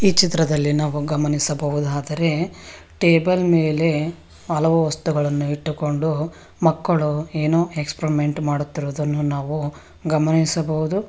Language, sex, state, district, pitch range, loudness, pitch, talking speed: Kannada, female, Karnataka, Bangalore, 150-165 Hz, -21 LUFS, 155 Hz, 80 wpm